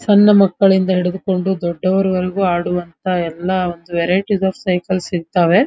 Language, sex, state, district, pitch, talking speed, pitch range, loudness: Kannada, female, Karnataka, Dharwad, 185 Hz, 115 wpm, 175-190 Hz, -16 LUFS